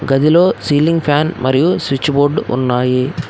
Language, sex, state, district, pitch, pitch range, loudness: Telugu, male, Telangana, Hyderabad, 145 Hz, 130-155 Hz, -14 LUFS